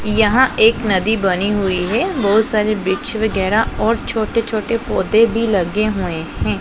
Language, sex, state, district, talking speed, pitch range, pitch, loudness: Hindi, female, Punjab, Pathankot, 155 wpm, 190-225 Hz, 215 Hz, -16 LUFS